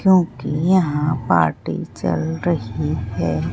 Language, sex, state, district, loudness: Hindi, female, Bihar, Katihar, -20 LUFS